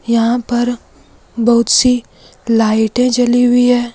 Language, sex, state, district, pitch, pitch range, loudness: Hindi, female, Jharkhand, Deoghar, 240 Hz, 230-245 Hz, -13 LUFS